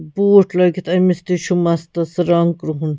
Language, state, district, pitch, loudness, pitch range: Kashmiri, Punjab, Kapurthala, 175 Hz, -16 LUFS, 170-180 Hz